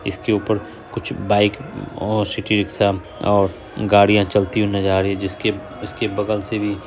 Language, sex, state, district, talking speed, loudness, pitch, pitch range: Hindi, male, Bihar, Saharsa, 175 wpm, -19 LUFS, 105 Hz, 100-105 Hz